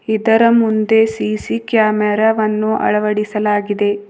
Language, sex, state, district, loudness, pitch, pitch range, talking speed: Kannada, female, Karnataka, Bidar, -15 LUFS, 215 Hz, 210-220 Hz, 90 wpm